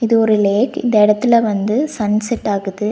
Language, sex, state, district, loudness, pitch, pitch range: Tamil, female, Tamil Nadu, Nilgiris, -15 LUFS, 215 Hz, 210-235 Hz